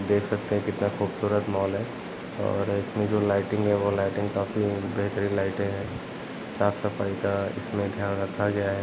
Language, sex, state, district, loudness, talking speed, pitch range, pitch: Hindi, male, Uttar Pradesh, Gorakhpur, -27 LUFS, 165 wpm, 100-105 Hz, 100 Hz